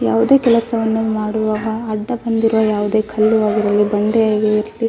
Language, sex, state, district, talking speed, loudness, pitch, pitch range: Kannada, female, Karnataka, Raichur, 100 wpm, -16 LUFS, 215 Hz, 210-225 Hz